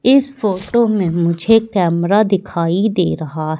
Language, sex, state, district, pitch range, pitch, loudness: Hindi, female, Madhya Pradesh, Katni, 170-220 Hz, 190 Hz, -16 LUFS